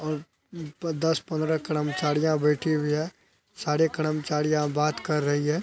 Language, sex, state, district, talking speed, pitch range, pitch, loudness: Hindi, male, Bihar, Araria, 160 wpm, 150-160 Hz, 155 Hz, -26 LUFS